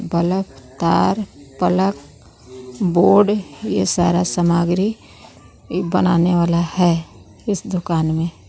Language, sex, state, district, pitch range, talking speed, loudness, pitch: Hindi, female, Jharkhand, Garhwa, 165-185 Hz, 90 wpm, -18 LUFS, 175 Hz